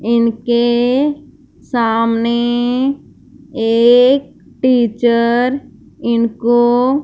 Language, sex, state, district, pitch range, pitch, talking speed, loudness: Hindi, female, Punjab, Fazilka, 235-265 Hz, 240 Hz, 45 wpm, -14 LUFS